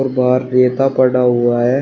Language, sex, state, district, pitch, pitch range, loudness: Hindi, male, Uttar Pradesh, Shamli, 125 Hz, 125-130 Hz, -14 LUFS